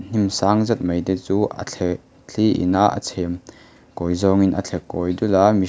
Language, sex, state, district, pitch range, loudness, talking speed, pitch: Mizo, male, Mizoram, Aizawl, 90-105 Hz, -20 LUFS, 210 wpm, 95 Hz